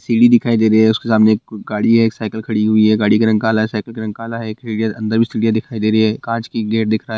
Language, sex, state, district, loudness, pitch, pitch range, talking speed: Hindi, male, Bihar, Bhagalpur, -16 LUFS, 110 Hz, 110-115 Hz, 315 wpm